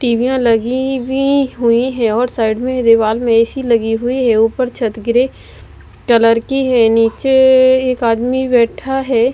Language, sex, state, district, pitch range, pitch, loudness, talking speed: Hindi, female, Maharashtra, Mumbai Suburban, 230-260 Hz, 245 Hz, -13 LUFS, 160 wpm